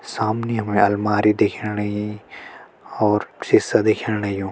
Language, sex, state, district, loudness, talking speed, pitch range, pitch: Hindi, male, Uttarakhand, Tehri Garhwal, -20 LUFS, 120 wpm, 105-110 Hz, 105 Hz